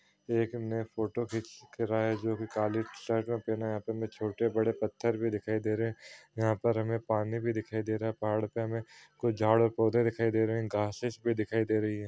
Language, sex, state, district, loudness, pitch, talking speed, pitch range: Hindi, male, Bihar, Madhepura, -32 LUFS, 110 Hz, 245 wpm, 110-115 Hz